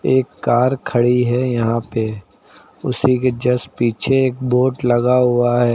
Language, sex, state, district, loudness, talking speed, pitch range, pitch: Hindi, male, Uttar Pradesh, Lucknow, -17 LUFS, 155 wpm, 120-130 Hz, 125 Hz